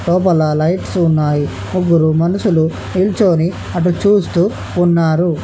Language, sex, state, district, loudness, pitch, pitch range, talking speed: Telugu, male, Andhra Pradesh, Chittoor, -14 LUFS, 170 Hz, 160-185 Hz, 100 wpm